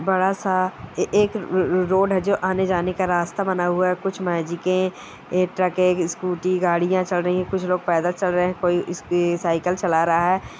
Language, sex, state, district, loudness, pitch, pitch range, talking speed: Hindi, female, Bihar, East Champaran, -21 LUFS, 185 Hz, 175-185 Hz, 185 wpm